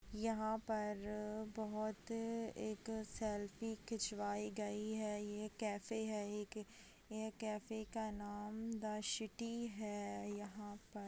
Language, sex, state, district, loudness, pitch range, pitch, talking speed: Hindi, female, Maharashtra, Aurangabad, -45 LUFS, 210-220 Hz, 215 Hz, 120 wpm